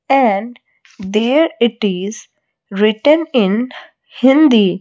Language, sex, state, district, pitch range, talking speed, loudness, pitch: English, female, Odisha, Malkangiri, 205-265 Hz, 85 wpm, -14 LUFS, 235 Hz